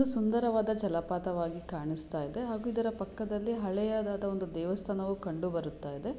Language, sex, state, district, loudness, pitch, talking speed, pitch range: Kannada, female, Karnataka, Shimoga, -34 LUFS, 195 Hz, 135 wpm, 170-220 Hz